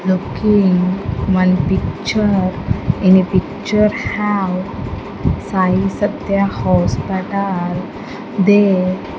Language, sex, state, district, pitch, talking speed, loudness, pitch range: English, female, Andhra Pradesh, Sri Satya Sai, 190 Hz, 80 wpm, -16 LUFS, 185-200 Hz